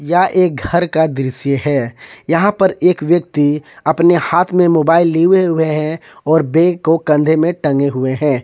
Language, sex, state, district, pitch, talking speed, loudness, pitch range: Hindi, male, Jharkhand, Ranchi, 160 Hz, 180 wpm, -14 LUFS, 145-175 Hz